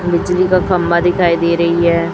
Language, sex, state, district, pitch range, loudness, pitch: Hindi, male, Chhattisgarh, Raipur, 170-180 Hz, -13 LUFS, 175 Hz